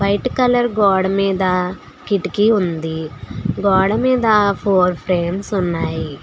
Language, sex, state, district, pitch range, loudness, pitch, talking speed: Telugu, female, Telangana, Hyderabad, 180-205 Hz, -17 LUFS, 195 Hz, 105 wpm